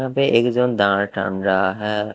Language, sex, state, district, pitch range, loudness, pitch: Hindi, male, Delhi, New Delhi, 95-120 Hz, -19 LUFS, 105 Hz